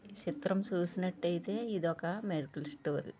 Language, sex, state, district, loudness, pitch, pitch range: Telugu, female, Andhra Pradesh, Visakhapatnam, -36 LUFS, 175 Hz, 155-190 Hz